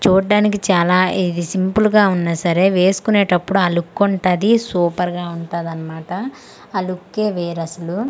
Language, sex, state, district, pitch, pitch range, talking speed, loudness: Telugu, female, Andhra Pradesh, Manyam, 185 Hz, 175-200 Hz, 140 wpm, -17 LUFS